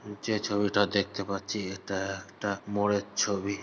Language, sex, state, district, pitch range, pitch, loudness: Bengali, male, West Bengal, North 24 Parganas, 100-105 Hz, 100 Hz, -30 LUFS